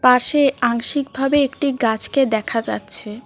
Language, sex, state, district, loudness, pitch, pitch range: Bengali, female, West Bengal, Cooch Behar, -18 LUFS, 255 Hz, 230-275 Hz